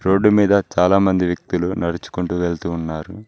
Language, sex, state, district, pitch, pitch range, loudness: Telugu, male, Telangana, Mahabubabad, 90 Hz, 85-100 Hz, -18 LUFS